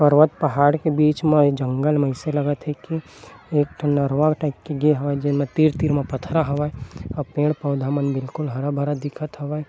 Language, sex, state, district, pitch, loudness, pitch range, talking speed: Chhattisgarhi, male, Chhattisgarh, Bilaspur, 145 Hz, -21 LUFS, 140-150 Hz, 200 wpm